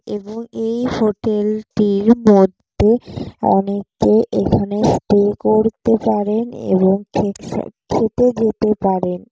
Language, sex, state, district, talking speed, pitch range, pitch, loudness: Bengali, female, West Bengal, Jalpaiguri, 90 wpm, 205-225 Hz, 215 Hz, -17 LUFS